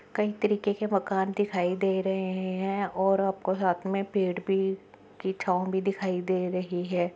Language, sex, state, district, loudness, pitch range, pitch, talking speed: Hindi, female, Uttar Pradesh, Muzaffarnagar, -28 LUFS, 185-195 Hz, 190 Hz, 195 wpm